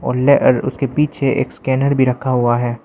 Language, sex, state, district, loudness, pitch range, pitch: Hindi, male, Arunachal Pradesh, Lower Dibang Valley, -16 LUFS, 125-135 Hz, 130 Hz